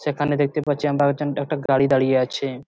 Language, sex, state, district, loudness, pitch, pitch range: Bengali, male, West Bengal, Purulia, -21 LUFS, 145 Hz, 135-145 Hz